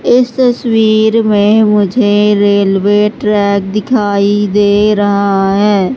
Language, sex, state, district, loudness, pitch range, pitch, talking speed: Hindi, female, Madhya Pradesh, Katni, -10 LUFS, 200-220 Hz, 210 Hz, 100 wpm